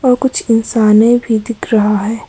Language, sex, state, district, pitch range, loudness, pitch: Hindi, female, Arunachal Pradesh, Papum Pare, 220-240 Hz, -12 LUFS, 225 Hz